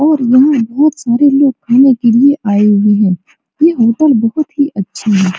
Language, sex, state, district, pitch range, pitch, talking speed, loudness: Hindi, female, Bihar, Supaul, 210-285 Hz, 250 Hz, 190 wpm, -11 LUFS